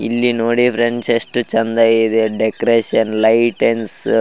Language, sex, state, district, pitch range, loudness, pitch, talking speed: Kannada, male, Karnataka, Raichur, 110-120 Hz, -15 LUFS, 115 Hz, 130 wpm